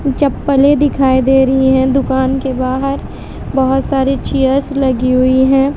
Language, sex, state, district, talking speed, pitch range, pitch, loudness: Hindi, female, Bihar, West Champaran, 145 wpm, 260-275 Hz, 270 Hz, -13 LUFS